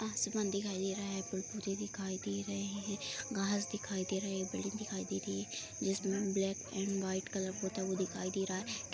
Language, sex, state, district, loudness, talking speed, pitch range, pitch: Hindi, female, Bihar, Begusarai, -38 LUFS, 200 wpm, 190-200 Hz, 195 Hz